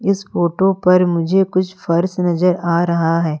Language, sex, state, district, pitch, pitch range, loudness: Hindi, female, Madhya Pradesh, Umaria, 180 Hz, 170-190 Hz, -16 LUFS